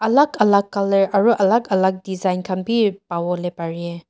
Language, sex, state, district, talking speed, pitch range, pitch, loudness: Nagamese, female, Nagaland, Dimapur, 160 wpm, 180-210 Hz, 195 Hz, -19 LUFS